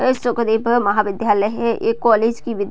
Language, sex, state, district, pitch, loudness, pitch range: Hindi, female, Bihar, Gopalganj, 225 Hz, -18 LUFS, 210-235 Hz